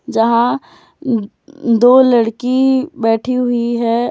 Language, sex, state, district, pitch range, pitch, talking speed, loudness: Hindi, female, Jharkhand, Deoghar, 230-260 Hz, 240 Hz, 90 wpm, -14 LUFS